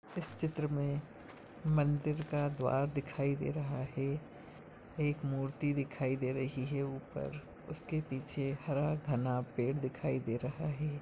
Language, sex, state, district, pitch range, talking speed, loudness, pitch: Hindi, male, Chhattisgarh, Bastar, 130-150 Hz, 140 wpm, -37 LUFS, 140 Hz